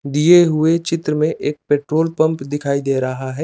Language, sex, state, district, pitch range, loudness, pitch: Hindi, male, Chandigarh, Chandigarh, 140-160 Hz, -17 LUFS, 150 Hz